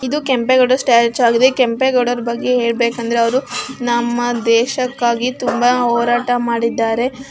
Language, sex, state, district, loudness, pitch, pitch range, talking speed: Kannada, male, Karnataka, Mysore, -15 LUFS, 245 Hz, 235-255 Hz, 115 wpm